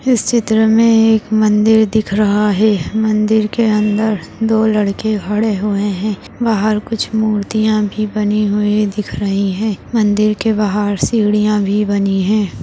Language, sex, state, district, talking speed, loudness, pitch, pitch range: Hindi, female, Maharashtra, Dhule, 150 wpm, -14 LUFS, 215 Hz, 210-220 Hz